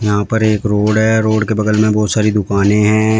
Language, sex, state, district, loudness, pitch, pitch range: Hindi, male, Uttar Pradesh, Shamli, -13 LUFS, 105 Hz, 105-110 Hz